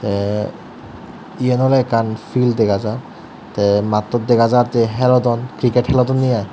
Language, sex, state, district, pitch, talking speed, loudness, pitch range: Chakma, male, Tripura, Dhalai, 120 Hz, 140 wpm, -16 LUFS, 105-125 Hz